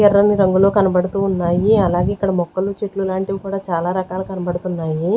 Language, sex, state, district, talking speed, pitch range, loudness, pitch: Telugu, female, Andhra Pradesh, Sri Satya Sai, 150 wpm, 180-195 Hz, -18 LUFS, 190 Hz